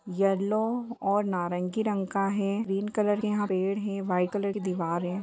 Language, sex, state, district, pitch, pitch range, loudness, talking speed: Hindi, female, Jharkhand, Sahebganj, 195 Hz, 185-210 Hz, -28 LUFS, 195 wpm